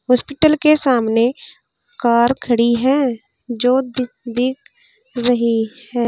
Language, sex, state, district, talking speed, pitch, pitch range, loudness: Hindi, female, Uttar Pradesh, Saharanpur, 110 wpm, 250 Hz, 235-275 Hz, -16 LUFS